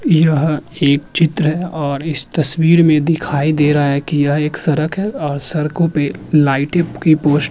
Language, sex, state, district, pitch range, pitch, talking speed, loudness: Hindi, male, Uttar Pradesh, Muzaffarnagar, 145-160 Hz, 155 Hz, 190 wpm, -15 LUFS